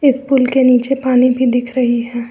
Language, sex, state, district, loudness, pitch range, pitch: Hindi, female, Uttar Pradesh, Lucknow, -13 LUFS, 245-265 Hz, 255 Hz